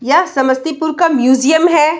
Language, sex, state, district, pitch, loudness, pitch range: Hindi, female, Bihar, Samastipur, 310 Hz, -12 LUFS, 265-320 Hz